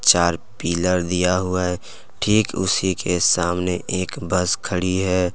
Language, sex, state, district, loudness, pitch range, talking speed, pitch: Hindi, male, Jharkhand, Deoghar, -20 LUFS, 90-95 Hz, 145 wpm, 90 Hz